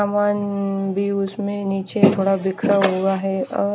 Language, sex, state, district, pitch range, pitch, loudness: Hindi, female, Haryana, Rohtak, 195-205 Hz, 200 Hz, -20 LUFS